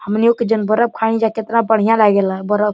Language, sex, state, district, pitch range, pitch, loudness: Bhojpuri, male, Uttar Pradesh, Deoria, 210-225 Hz, 225 Hz, -15 LUFS